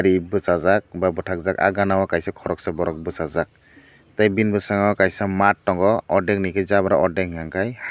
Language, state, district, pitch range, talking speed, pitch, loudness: Kokborok, Tripura, Dhalai, 90-100 Hz, 205 wpm, 95 Hz, -21 LUFS